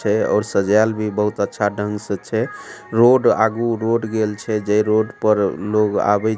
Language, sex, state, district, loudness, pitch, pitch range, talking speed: Maithili, male, Bihar, Supaul, -18 LUFS, 105 Hz, 105-110 Hz, 180 wpm